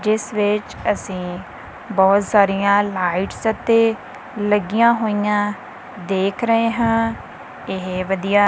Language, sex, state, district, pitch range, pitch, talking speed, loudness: Punjabi, female, Punjab, Kapurthala, 195-225 Hz, 205 Hz, 100 wpm, -19 LUFS